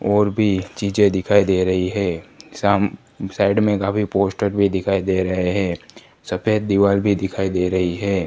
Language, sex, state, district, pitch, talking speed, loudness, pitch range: Hindi, male, Gujarat, Gandhinagar, 100 Hz, 175 wpm, -19 LUFS, 95-100 Hz